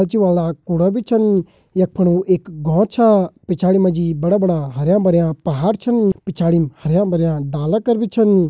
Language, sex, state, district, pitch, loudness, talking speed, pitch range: Garhwali, male, Uttarakhand, Uttarkashi, 185 Hz, -17 LUFS, 140 wpm, 170-205 Hz